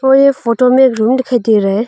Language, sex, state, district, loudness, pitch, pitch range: Hindi, female, Arunachal Pradesh, Longding, -11 LUFS, 250 Hz, 225-265 Hz